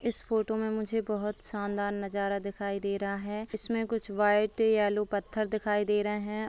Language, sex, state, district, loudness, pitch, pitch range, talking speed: Hindi, female, Bihar, Begusarai, -31 LUFS, 210 Hz, 205-220 Hz, 185 wpm